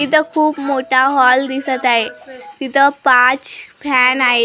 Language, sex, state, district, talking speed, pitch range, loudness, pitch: Marathi, female, Maharashtra, Gondia, 150 wpm, 255-280 Hz, -14 LUFS, 265 Hz